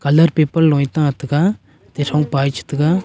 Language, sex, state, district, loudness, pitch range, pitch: Wancho, male, Arunachal Pradesh, Longding, -16 LUFS, 140-160 Hz, 150 Hz